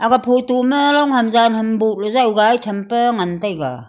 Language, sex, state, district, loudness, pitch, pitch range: Wancho, female, Arunachal Pradesh, Longding, -16 LUFS, 230 Hz, 210-250 Hz